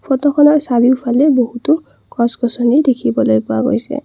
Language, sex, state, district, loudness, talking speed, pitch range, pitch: Assamese, female, Assam, Kamrup Metropolitan, -14 LUFS, 120 wpm, 235-285 Hz, 255 Hz